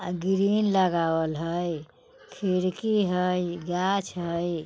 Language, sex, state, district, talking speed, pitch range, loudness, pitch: Bajjika, female, Bihar, Vaishali, 90 wpm, 170-195 Hz, -26 LUFS, 180 Hz